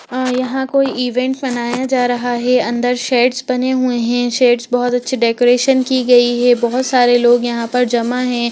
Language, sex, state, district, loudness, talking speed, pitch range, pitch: Hindi, female, Bihar, Lakhisarai, -15 LUFS, 195 wpm, 245-255 Hz, 245 Hz